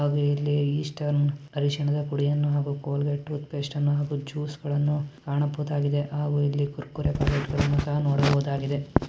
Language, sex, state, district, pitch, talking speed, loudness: Kannada, male, Karnataka, Mysore, 145 Hz, 130 wpm, -26 LUFS